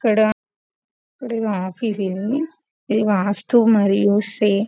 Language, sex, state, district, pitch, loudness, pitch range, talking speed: Telugu, female, Telangana, Karimnagar, 215 Hz, -19 LUFS, 200-225 Hz, 90 wpm